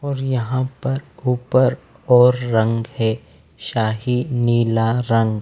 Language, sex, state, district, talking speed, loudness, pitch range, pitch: Hindi, male, Bihar, Patna, 110 wpm, -19 LUFS, 115-130 Hz, 125 Hz